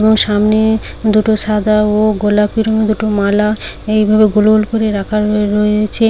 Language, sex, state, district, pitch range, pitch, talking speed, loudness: Bengali, female, West Bengal, Paschim Medinipur, 210-215 Hz, 215 Hz, 155 wpm, -13 LUFS